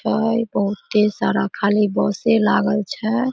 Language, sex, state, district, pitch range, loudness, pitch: Maithili, female, Bihar, Samastipur, 205-225 Hz, -19 LUFS, 210 Hz